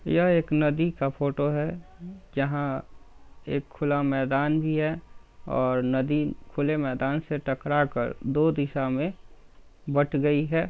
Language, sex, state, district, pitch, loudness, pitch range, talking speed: Hindi, male, Bihar, Saran, 145 Hz, -26 LUFS, 135-155 Hz, 140 wpm